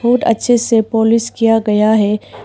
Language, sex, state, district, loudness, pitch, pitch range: Hindi, female, Arunachal Pradesh, Papum Pare, -13 LUFS, 225 Hz, 215-230 Hz